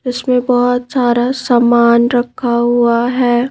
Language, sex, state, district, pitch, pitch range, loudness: Hindi, female, Madhya Pradesh, Bhopal, 245 Hz, 240-250 Hz, -13 LUFS